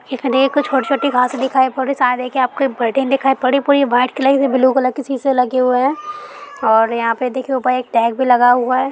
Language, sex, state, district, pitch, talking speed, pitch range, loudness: Hindi, female, Andhra Pradesh, Guntur, 260 Hz, 180 wpm, 250-275 Hz, -15 LUFS